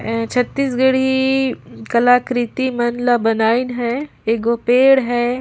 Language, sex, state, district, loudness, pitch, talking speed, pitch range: Surgujia, female, Chhattisgarh, Sarguja, -17 LUFS, 245 Hz, 110 wpm, 235-260 Hz